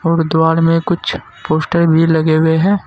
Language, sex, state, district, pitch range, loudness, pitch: Hindi, male, Uttar Pradesh, Saharanpur, 160-170 Hz, -13 LUFS, 165 Hz